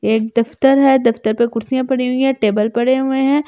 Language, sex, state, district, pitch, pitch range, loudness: Hindi, female, Delhi, New Delhi, 250 Hz, 230-265 Hz, -15 LUFS